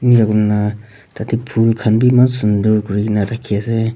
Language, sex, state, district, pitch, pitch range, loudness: Nagamese, male, Nagaland, Kohima, 110 Hz, 105-115 Hz, -15 LUFS